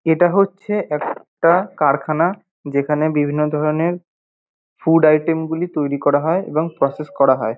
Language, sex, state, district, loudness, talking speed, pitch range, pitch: Bengali, male, West Bengal, North 24 Parganas, -18 LUFS, 135 wpm, 145-170 Hz, 155 Hz